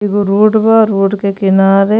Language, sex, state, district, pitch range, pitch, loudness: Bhojpuri, female, Uttar Pradesh, Ghazipur, 195-215 Hz, 205 Hz, -10 LUFS